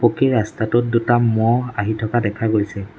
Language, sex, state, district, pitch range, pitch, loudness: Assamese, male, Assam, Sonitpur, 105-120 Hz, 115 Hz, -19 LUFS